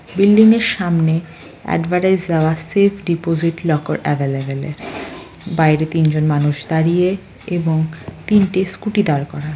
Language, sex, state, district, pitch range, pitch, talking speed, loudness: Bengali, female, West Bengal, Malda, 155-185 Hz, 165 Hz, 105 wpm, -17 LUFS